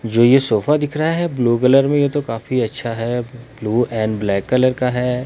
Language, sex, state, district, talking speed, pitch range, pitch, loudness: Hindi, male, Himachal Pradesh, Shimla, 230 wpm, 115-135 Hz, 125 Hz, -17 LUFS